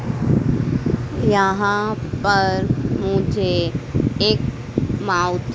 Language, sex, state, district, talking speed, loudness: Hindi, female, Madhya Pradesh, Dhar, 55 wpm, -20 LUFS